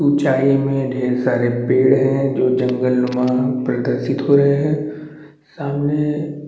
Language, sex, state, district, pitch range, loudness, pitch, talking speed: Hindi, male, Chhattisgarh, Bastar, 125-145 Hz, -17 LUFS, 135 Hz, 120 wpm